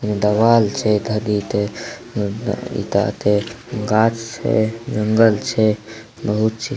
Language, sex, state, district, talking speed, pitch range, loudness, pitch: Maithili, male, Bihar, Samastipur, 105 wpm, 105-115 Hz, -19 LUFS, 110 Hz